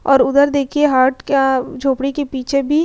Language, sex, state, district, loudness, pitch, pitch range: Hindi, female, Bihar, Vaishali, -16 LUFS, 275 Hz, 265-285 Hz